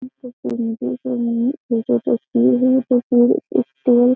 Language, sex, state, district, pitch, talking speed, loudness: Hindi, female, Uttar Pradesh, Jyotiba Phule Nagar, 240 Hz, 70 wpm, -18 LUFS